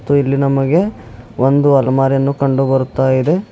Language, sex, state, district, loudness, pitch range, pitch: Kannada, female, Karnataka, Bidar, -14 LUFS, 130-140 Hz, 135 Hz